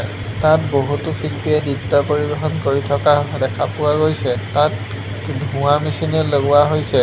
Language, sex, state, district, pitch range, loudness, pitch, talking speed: Assamese, male, Assam, Hailakandi, 125-150 Hz, -18 LUFS, 145 Hz, 130 wpm